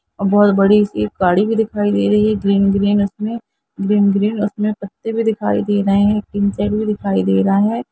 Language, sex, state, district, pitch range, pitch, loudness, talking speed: Hindi, female, Jharkhand, Sahebganj, 200-210 Hz, 205 Hz, -16 LUFS, 205 wpm